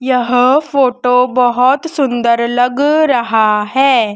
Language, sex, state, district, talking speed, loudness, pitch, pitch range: Hindi, male, Madhya Pradesh, Dhar, 100 wpm, -12 LUFS, 250 Hz, 240-275 Hz